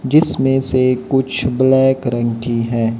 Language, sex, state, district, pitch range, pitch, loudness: Hindi, male, Haryana, Jhajjar, 120-135 Hz, 130 Hz, -16 LUFS